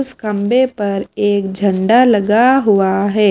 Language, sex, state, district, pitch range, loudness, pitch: Hindi, female, Himachal Pradesh, Shimla, 200-240 Hz, -14 LUFS, 205 Hz